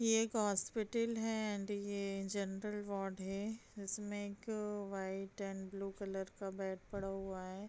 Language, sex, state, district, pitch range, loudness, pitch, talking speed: Hindi, female, Bihar, Begusarai, 195-210 Hz, -41 LUFS, 200 Hz, 155 wpm